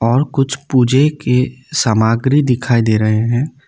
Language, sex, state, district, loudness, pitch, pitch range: Hindi, male, Assam, Kamrup Metropolitan, -14 LUFS, 125 Hz, 115-135 Hz